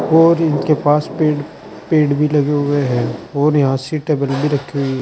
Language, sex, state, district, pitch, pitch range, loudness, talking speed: Hindi, male, Uttar Pradesh, Saharanpur, 145 Hz, 140-155 Hz, -16 LUFS, 165 wpm